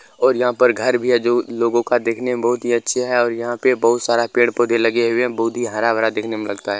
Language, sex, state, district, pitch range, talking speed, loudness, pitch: Hindi, male, Bihar, Sitamarhi, 115-125 Hz, 290 wpm, -18 LUFS, 120 Hz